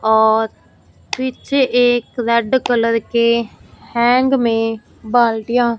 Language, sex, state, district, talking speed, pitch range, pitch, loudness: Hindi, female, Punjab, Fazilka, 95 wpm, 225-245 Hz, 235 Hz, -16 LUFS